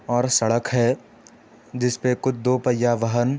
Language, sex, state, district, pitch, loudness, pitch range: Hindi, male, Uttar Pradesh, Etah, 125 Hz, -22 LUFS, 120-125 Hz